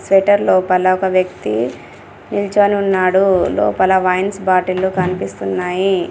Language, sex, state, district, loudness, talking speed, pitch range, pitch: Telugu, female, Telangana, Komaram Bheem, -15 LUFS, 90 wpm, 185-195 Hz, 185 Hz